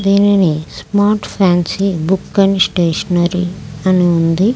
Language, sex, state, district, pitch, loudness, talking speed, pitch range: Telugu, female, Andhra Pradesh, Krishna, 185 Hz, -14 LUFS, 90 wpm, 175-195 Hz